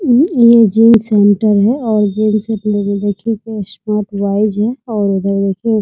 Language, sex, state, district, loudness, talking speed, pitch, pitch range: Hindi, female, Bihar, Muzaffarpur, -13 LUFS, 185 wpm, 215 Hz, 205-225 Hz